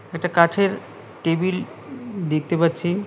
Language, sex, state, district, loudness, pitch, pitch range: Bengali, male, West Bengal, Cooch Behar, -21 LUFS, 175 Hz, 170-195 Hz